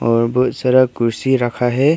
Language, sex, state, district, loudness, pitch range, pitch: Hindi, male, Arunachal Pradesh, Longding, -16 LUFS, 115-130 Hz, 125 Hz